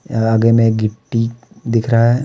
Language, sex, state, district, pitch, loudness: Hindi, male, Jharkhand, Deoghar, 115 Hz, -15 LUFS